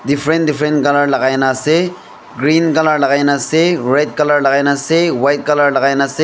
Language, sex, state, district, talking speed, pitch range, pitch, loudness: Nagamese, male, Nagaland, Dimapur, 200 wpm, 140-155 Hz, 145 Hz, -13 LUFS